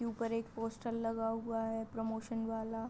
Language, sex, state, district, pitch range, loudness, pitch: Hindi, female, Uttar Pradesh, Hamirpur, 225-230 Hz, -39 LUFS, 225 Hz